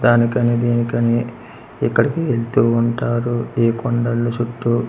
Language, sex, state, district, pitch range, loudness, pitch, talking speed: Telugu, male, Andhra Pradesh, Manyam, 115-120 Hz, -18 LUFS, 120 Hz, 100 wpm